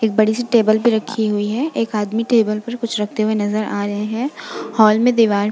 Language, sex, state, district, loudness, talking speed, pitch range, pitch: Hindi, female, Uttar Pradesh, Jalaun, -18 LUFS, 240 wpm, 210-235 Hz, 220 Hz